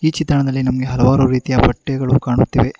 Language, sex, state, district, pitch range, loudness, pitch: Kannada, male, Karnataka, Bangalore, 130-135 Hz, -16 LUFS, 130 Hz